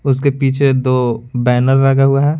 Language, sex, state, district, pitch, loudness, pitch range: Hindi, male, Bihar, Patna, 135 Hz, -14 LUFS, 125-135 Hz